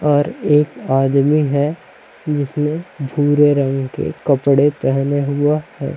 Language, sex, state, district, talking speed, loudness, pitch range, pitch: Hindi, male, Chhattisgarh, Raipur, 120 wpm, -17 LUFS, 140-150 Hz, 145 Hz